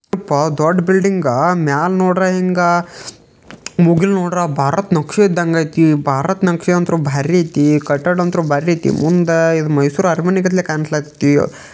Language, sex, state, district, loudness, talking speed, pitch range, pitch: Kannada, male, Karnataka, Bijapur, -15 LUFS, 125 wpm, 150-180 Hz, 170 Hz